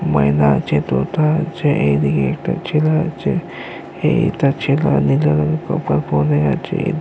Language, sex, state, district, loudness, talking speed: Bengali, male, West Bengal, Jalpaiguri, -17 LUFS, 95 wpm